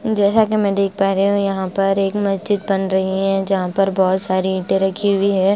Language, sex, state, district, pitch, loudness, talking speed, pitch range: Hindi, female, Bihar, West Champaran, 195 Hz, -18 LUFS, 235 wpm, 190-200 Hz